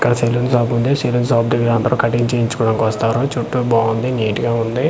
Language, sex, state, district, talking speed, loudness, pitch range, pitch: Telugu, male, Andhra Pradesh, Manyam, 195 wpm, -17 LUFS, 115-125 Hz, 120 Hz